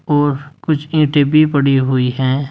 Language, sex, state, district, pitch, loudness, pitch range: Hindi, male, Uttar Pradesh, Saharanpur, 140 Hz, -15 LUFS, 135-150 Hz